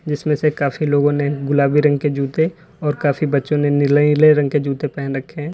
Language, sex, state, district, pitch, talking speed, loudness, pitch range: Hindi, male, Uttar Pradesh, Lalitpur, 145 Hz, 225 wpm, -17 LUFS, 145-150 Hz